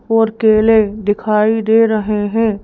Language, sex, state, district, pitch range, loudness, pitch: Hindi, female, Madhya Pradesh, Bhopal, 210-225 Hz, -14 LUFS, 220 Hz